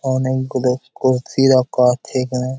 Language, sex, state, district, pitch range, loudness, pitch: Bengali, male, West Bengal, Malda, 125-130 Hz, -17 LUFS, 130 Hz